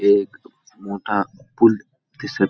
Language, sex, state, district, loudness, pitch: Marathi, male, Maharashtra, Pune, -21 LUFS, 100 Hz